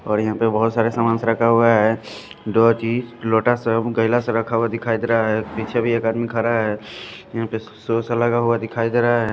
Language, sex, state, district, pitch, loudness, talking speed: Hindi, male, Punjab, Fazilka, 115 Hz, -19 LUFS, 130 wpm